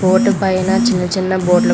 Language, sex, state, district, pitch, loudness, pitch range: Telugu, female, Andhra Pradesh, Visakhapatnam, 190 Hz, -15 LUFS, 185-210 Hz